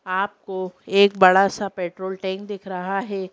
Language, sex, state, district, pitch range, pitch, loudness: Hindi, female, Madhya Pradesh, Bhopal, 185-195 Hz, 190 Hz, -21 LUFS